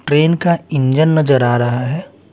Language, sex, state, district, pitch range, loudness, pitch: Hindi, male, Bihar, Patna, 130-160 Hz, -14 LUFS, 150 Hz